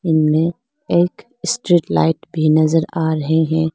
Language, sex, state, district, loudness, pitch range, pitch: Hindi, female, Arunachal Pradesh, Lower Dibang Valley, -17 LUFS, 155-175 Hz, 160 Hz